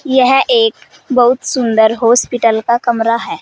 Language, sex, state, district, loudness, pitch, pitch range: Hindi, female, Uttar Pradesh, Saharanpur, -12 LUFS, 245 Hz, 230-260 Hz